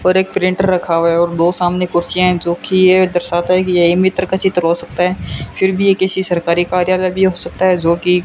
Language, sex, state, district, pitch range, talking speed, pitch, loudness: Hindi, male, Rajasthan, Bikaner, 175-185 Hz, 275 wpm, 180 Hz, -14 LUFS